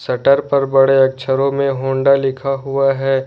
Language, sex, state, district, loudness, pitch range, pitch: Hindi, male, Jharkhand, Ranchi, -15 LUFS, 135-140 Hz, 135 Hz